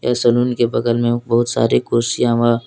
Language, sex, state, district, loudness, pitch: Hindi, male, Jharkhand, Deoghar, -16 LUFS, 120 Hz